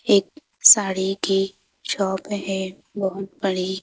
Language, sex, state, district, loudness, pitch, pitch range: Hindi, female, Madhya Pradesh, Bhopal, -20 LUFS, 195 Hz, 190-200 Hz